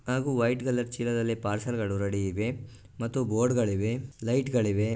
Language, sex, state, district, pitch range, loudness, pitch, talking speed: Kannada, male, Karnataka, Gulbarga, 105-125 Hz, -29 LUFS, 120 Hz, 135 wpm